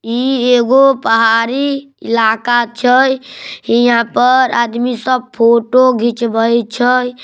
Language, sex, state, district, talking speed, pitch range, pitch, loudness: Magahi, male, Bihar, Samastipur, 100 wpm, 235-255 Hz, 245 Hz, -12 LUFS